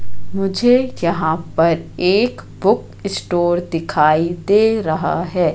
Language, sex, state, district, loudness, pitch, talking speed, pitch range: Hindi, female, Madhya Pradesh, Katni, -17 LUFS, 175 Hz, 110 wpm, 160-195 Hz